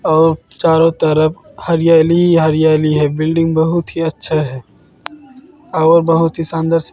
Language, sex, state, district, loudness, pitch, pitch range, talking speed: Hindi, male, Bihar, Katihar, -13 LUFS, 165 Hz, 155-165 Hz, 140 wpm